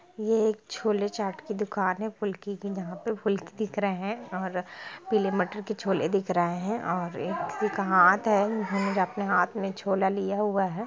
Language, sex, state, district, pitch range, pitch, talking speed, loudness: Hindi, female, Jharkhand, Jamtara, 185-210 Hz, 200 Hz, 205 wpm, -28 LUFS